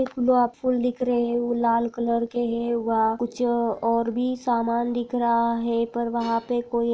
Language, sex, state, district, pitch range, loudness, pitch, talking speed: Hindi, female, Maharashtra, Aurangabad, 235-245 Hz, -24 LUFS, 235 Hz, 190 wpm